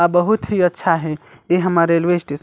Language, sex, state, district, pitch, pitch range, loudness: Chhattisgarhi, male, Chhattisgarh, Sarguja, 175 Hz, 165-180 Hz, -17 LUFS